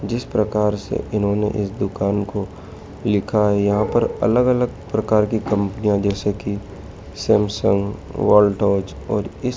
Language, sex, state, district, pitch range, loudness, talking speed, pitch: Hindi, male, Madhya Pradesh, Dhar, 100-110 Hz, -20 LUFS, 140 wpm, 105 Hz